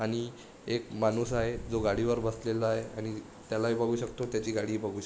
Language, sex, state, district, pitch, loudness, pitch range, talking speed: Marathi, male, Maharashtra, Sindhudurg, 115 Hz, -32 LUFS, 110-115 Hz, 225 wpm